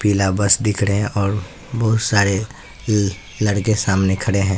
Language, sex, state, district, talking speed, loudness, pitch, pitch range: Hindi, male, Bihar, Katihar, 185 wpm, -18 LUFS, 100 Hz, 100-110 Hz